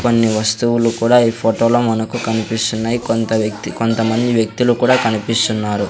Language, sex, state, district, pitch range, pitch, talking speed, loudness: Telugu, male, Andhra Pradesh, Sri Satya Sai, 110-120 Hz, 115 Hz, 140 wpm, -16 LUFS